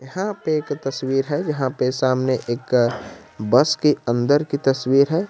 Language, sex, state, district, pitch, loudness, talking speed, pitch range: Hindi, male, Jharkhand, Garhwa, 135 Hz, -20 LUFS, 170 wpm, 130-150 Hz